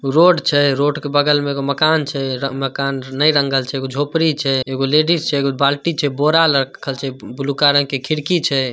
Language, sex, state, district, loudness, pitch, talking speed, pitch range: Hindi, male, Bihar, Samastipur, -17 LUFS, 140 Hz, 205 wpm, 135-150 Hz